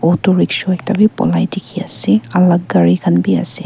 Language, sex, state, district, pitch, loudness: Nagamese, female, Nagaland, Kohima, 170 Hz, -14 LUFS